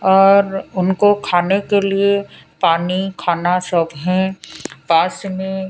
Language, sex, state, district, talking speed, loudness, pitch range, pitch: Hindi, female, Odisha, Sambalpur, 115 wpm, -16 LUFS, 175-195 Hz, 190 Hz